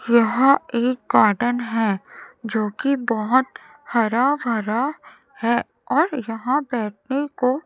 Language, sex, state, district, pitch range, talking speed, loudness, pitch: Hindi, female, Chhattisgarh, Raipur, 225-270 Hz, 110 wpm, -21 LUFS, 245 Hz